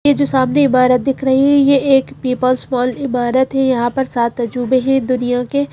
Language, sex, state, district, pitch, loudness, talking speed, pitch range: Hindi, female, Madhya Pradesh, Bhopal, 260 Hz, -15 LUFS, 210 wpm, 250-270 Hz